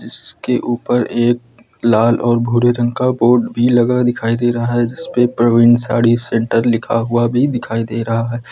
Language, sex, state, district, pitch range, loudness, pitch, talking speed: Hindi, male, Uttar Pradesh, Lucknow, 115-120 Hz, -15 LUFS, 120 Hz, 195 wpm